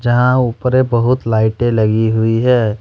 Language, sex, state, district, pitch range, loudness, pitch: Hindi, male, Jharkhand, Ranchi, 110-125 Hz, -14 LUFS, 120 Hz